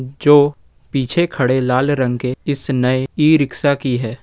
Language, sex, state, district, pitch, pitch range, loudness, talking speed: Hindi, male, Jharkhand, Ranchi, 135 Hz, 125-145 Hz, -16 LUFS, 170 wpm